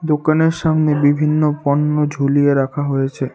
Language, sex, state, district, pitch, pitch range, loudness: Bengali, male, West Bengal, Alipurduar, 145 Hz, 140-155 Hz, -16 LUFS